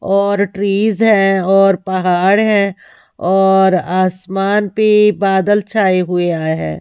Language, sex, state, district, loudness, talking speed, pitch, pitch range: Hindi, female, Haryana, Rohtak, -13 LUFS, 125 wpm, 195 Hz, 185-205 Hz